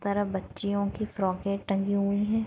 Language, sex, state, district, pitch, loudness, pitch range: Hindi, female, Chhattisgarh, Rajnandgaon, 200 Hz, -29 LUFS, 200-205 Hz